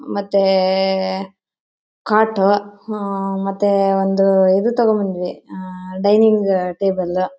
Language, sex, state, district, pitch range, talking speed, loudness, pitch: Kannada, female, Karnataka, Bellary, 190-205 Hz, 80 wpm, -17 LUFS, 195 Hz